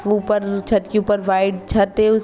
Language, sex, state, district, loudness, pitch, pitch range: Hindi, female, Jharkhand, Sahebganj, -18 LUFS, 205 Hz, 200-215 Hz